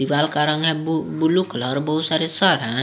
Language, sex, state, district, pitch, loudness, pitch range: Hindi, male, Jharkhand, Garhwa, 155 Hz, -19 LUFS, 145-160 Hz